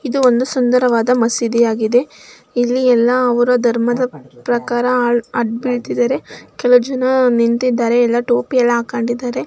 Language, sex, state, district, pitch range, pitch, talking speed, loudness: Kannada, male, Karnataka, Mysore, 235-250 Hz, 245 Hz, 120 wpm, -15 LUFS